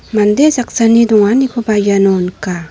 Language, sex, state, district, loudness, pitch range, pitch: Garo, female, Meghalaya, North Garo Hills, -12 LUFS, 195-235 Hz, 210 Hz